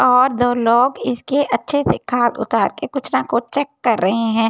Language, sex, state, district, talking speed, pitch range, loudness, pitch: Hindi, female, Delhi, New Delhi, 225 wpm, 235-275 Hz, -18 LUFS, 245 Hz